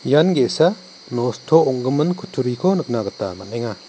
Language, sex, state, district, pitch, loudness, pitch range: Garo, male, Meghalaya, West Garo Hills, 125 Hz, -19 LUFS, 115-160 Hz